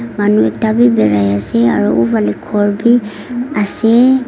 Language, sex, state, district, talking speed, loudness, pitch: Nagamese, female, Nagaland, Kohima, 155 wpm, -13 LUFS, 205 Hz